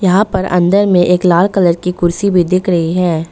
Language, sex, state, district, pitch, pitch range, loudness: Hindi, female, Arunachal Pradesh, Lower Dibang Valley, 180 Hz, 175-190 Hz, -12 LUFS